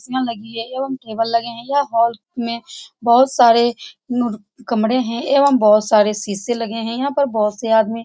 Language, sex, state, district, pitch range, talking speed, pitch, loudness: Hindi, female, Bihar, Saran, 225-255 Hz, 195 wpm, 235 Hz, -18 LUFS